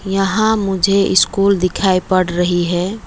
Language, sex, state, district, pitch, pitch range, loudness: Hindi, female, West Bengal, Alipurduar, 190 Hz, 180-200 Hz, -15 LUFS